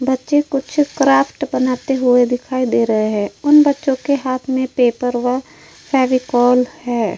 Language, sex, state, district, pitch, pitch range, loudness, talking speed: Hindi, female, Uttar Pradesh, Hamirpur, 255 Hz, 245-270 Hz, -16 LUFS, 150 wpm